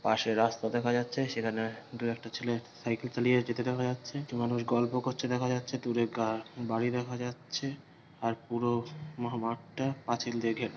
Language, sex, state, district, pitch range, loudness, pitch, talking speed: Bengali, male, West Bengal, North 24 Parganas, 115-125 Hz, -33 LUFS, 120 Hz, 180 wpm